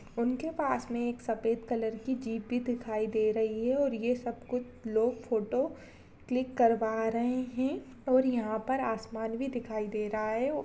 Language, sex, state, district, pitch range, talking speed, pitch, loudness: Hindi, female, Uttar Pradesh, Jyotiba Phule Nagar, 225-255 Hz, 190 wpm, 235 Hz, -32 LUFS